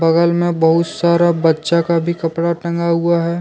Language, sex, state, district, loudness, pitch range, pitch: Hindi, male, Jharkhand, Deoghar, -15 LUFS, 165-170 Hz, 170 Hz